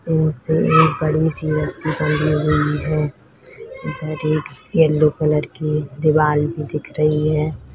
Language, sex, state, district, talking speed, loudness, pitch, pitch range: Hindi, female, Bihar, Madhepura, 130 wpm, -19 LUFS, 155 Hz, 150-155 Hz